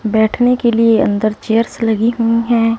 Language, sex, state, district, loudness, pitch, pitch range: Hindi, female, Punjab, Fazilka, -14 LUFS, 230 Hz, 220-235 Hz